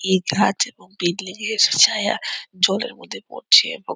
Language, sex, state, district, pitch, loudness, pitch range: Bengali, female, West Bengal, Purulia, 195 Hz, -18 LUFS, 185-240 Hz